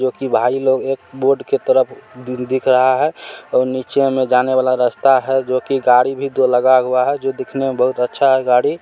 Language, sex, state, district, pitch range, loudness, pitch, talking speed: Maithili, male, Bihar, Supaul, 125-135 Hz, -16 LUFS, 130 Hz, 230 wpm